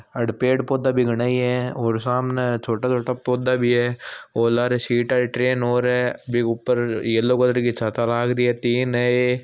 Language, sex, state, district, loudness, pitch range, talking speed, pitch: Marwari, male, Rajasthan, Nagaur, -21 LUFS, 120-125 Hz, 210 wpm, 125 Hz